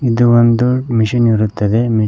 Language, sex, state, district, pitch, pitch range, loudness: Kannada, male, Karnataka, Koppal, 115 Hz, 110-120 Hz, -13 LUFS